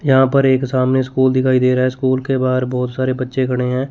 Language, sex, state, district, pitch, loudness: Hindi, male, Chandigarh, Chandigarh, 130 Hz, -16 LUFS